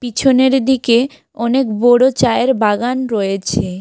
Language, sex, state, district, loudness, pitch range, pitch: Bengali, female, West Bengal, Alipurduar, -14 LUFS, 215-260 Hz, 245 Hz